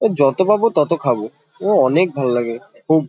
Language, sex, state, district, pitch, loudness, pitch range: Bengali, male, West Bengal, Kolkata, 150 Hz, -17 LUFS, 125-185 Hz